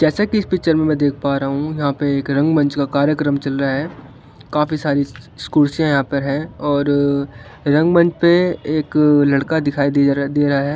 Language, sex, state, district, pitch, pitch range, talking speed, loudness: Hindi, female, Maharashtra, Chandrapur, 145 Hz, 140-155 Hz, 225 wpm, -17 LUFS